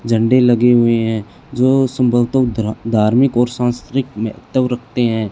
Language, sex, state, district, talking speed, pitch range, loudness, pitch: Hindi, male, Haryana, Charkhi Dadri, 115 wpm, 115-125 Hz, -15 LUFS, 120 Hz